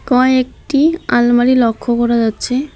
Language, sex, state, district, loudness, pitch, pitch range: Bengali, female, West Bengal, Alipurduar, -14 LUFS, 250 Hz, 240-260 Hz